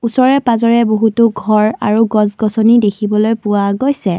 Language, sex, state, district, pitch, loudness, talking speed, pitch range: Assamese, female, Assam, Kamrup Metropolitan, 220 Hz, -13 LUFS, 145 wpm, 210-235 Hz